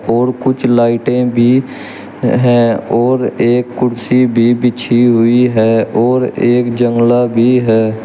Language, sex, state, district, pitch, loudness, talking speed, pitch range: Hindi, male, Uttar Pradesh, Shamli, 120 Hz, -12 LUFS, 125 wpm, 115-125 Hz